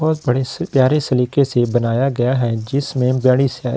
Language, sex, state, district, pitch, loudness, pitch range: Hindi, male, Delhi, New Delhi, 130 Hz, -17 LUFS, 125-140 Hz